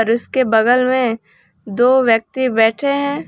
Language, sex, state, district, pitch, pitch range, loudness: Hindi, female, Jharkhand, Palamu, 240 Hz, 225-260 Hz, -15 LUFS